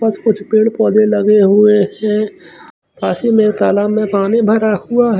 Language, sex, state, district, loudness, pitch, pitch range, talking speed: Hindi, male, Chandigarh, Chandigarh, -13 LUFS, 215 Hz, 205-220 Hz, 175 wpm